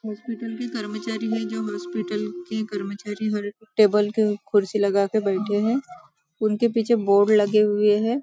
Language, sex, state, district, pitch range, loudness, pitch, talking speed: Hindi, female, Maharashtra, Nagpur, 205-220 Hz, -23 LUFS, 210 Hz, 160 wpm